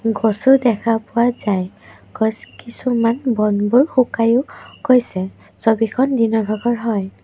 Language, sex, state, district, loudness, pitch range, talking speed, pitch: Assamese, female, Assam, Kamrup Metropolitan, -17 LUFS, 215-245 Hz, 110 wpm, 230 Hz